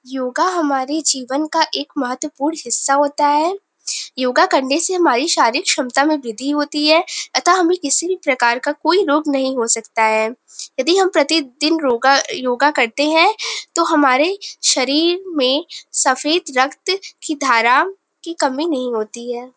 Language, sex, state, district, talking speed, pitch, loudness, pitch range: Hindi, female, Uttar Pradesh, Varanasi, 155 wpm, 295 Hz, -16 LUFS, 260-330 Hz